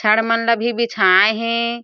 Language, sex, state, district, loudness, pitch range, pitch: Chhattisgarhi, female, Chhattisgarh, Jashpur, -16 LUFS, 215-235 Hz, 230 Hz